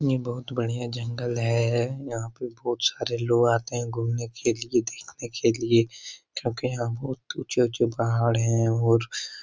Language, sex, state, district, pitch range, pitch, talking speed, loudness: Hindi, male, Bihar, Lakhisarai, 115-120 Hz, 120 Hz, 155 wpm, -26 LUFS